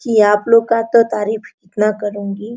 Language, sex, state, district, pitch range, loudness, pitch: Hindi, female, Jharkhand, Sahebganj, 210-230 Hz, -15 LUFS, 215 Hz